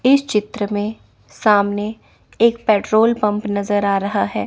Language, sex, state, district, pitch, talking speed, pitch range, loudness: Hindi, female, Chandigarh, Chandigarh, 205 Hz, 145 wpm, 200-220 Hz, -18 LUFS